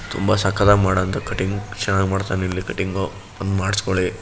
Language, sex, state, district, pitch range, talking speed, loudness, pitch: Kannada, male, Karnataka, Shimoga, 95-100 Hz, 155 wpm, -21 LUFS, 95 Hz